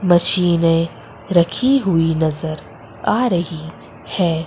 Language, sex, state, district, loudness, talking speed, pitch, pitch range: Hindi, female, Madhya Pradesh, Umaria, -17 LUFS, 95 wpm, 165 Hz, 155-175 Hz